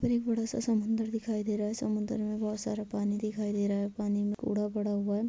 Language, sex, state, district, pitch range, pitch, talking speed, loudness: Hindi, female, Jharkhand, Jamtara, 205-225 Hz, 215 Hz, 270 wpm, -32 LUFS